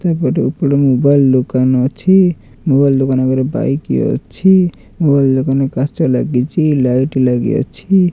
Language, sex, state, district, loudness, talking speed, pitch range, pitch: Odia, male, Odisha, Khordha, -14 LUFS, 120 wpm, 130-160 Hz, 135 Hz